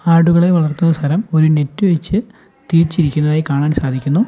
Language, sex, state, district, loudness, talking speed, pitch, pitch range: Malayalam, male, Kerala, Kollam, -15 LUFS, 125 wpm, 165 Hz, 150-175 Hz